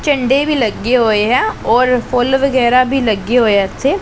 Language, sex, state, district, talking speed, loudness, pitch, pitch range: Punjabi, female, Punjab, Pathankot, 165 wpm, -13 LUFS, 250 Hz, 230-270 Hz